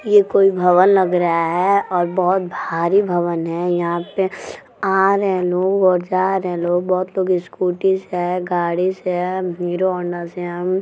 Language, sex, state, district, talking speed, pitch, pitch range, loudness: Bhojpuri, female, Uttar Pradesh, Gorakhpur, 185 wpm, 180 Hz, 175-190 Hz, -18 LUFS